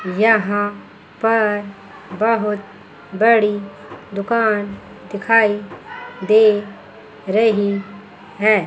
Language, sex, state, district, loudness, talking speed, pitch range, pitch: Hindi, female, Chandigarh, Chandigarh, -17 LUFS, 60 wpm, 200-220 Hz, 205 Hz